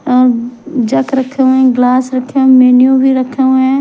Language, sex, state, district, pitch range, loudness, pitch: Hindi, female, Punjab, Kapurthala, 250-265 Hz, -10 LUFS, 260 Hz